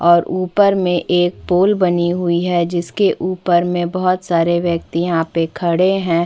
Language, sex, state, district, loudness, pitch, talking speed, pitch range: Hindi, female, Chhattisgarh, Bastar, -16 LUFS, 175 Hz, 170 wpm, 170-185 Hz